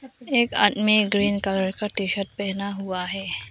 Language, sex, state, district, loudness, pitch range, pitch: Hindi, female, Arunachal Pradesh, Lower Dibang Valley, -23 LUFS, 195-210 Hz, 200 Hz